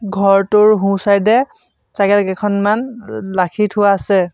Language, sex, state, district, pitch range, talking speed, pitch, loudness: Assamese, male, Assam, Sonitpur, 195-210 Hz, 110 wpm, 205 Hz, -14 LUFS